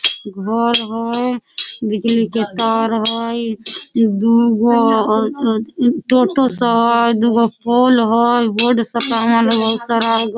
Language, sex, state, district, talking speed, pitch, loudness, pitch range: Maithili, female, Bihar, Samastipur, 110 wpm, 230 Hz, -15 LUFS, 225-235 Hz